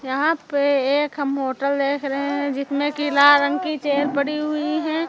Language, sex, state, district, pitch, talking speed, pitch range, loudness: Hindi, female, Chhattisgarh, Raipur, 285 Hz, 200 wpm, 280-300 Hz, -20 LUFS